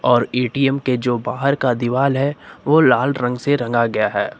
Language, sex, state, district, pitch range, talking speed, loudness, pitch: Hindi, male, Uttar Pradesh, Lucknow, 120-140 Hz, 205 wpm, -18 LUFS, 130 Hz